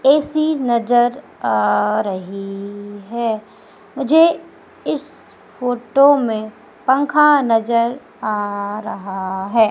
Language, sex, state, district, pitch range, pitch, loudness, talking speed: Hindi, female, Madhya Pradesh, Umaria, 205-270 Hz, 230 Hz, -18 LUFS, 85 wpm